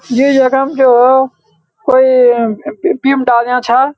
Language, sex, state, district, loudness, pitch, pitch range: Garhwali, male, Uttarakhand, Uttarkashi, -11 LUFS, 255 Hz, 240-270 Hz